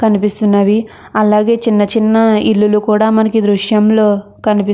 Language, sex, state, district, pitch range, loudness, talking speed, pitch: Telugu, female, Andhra Pradesh, Krishna, 205-220 Hz, -12 LUFS, 75 wpm, 215 Hz